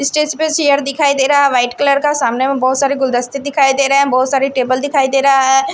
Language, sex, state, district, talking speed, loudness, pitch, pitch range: Hindi, female, Punjab, Kapurthala, 270 wpm, -13 LUFS, 275 Hz, 265-285 Hz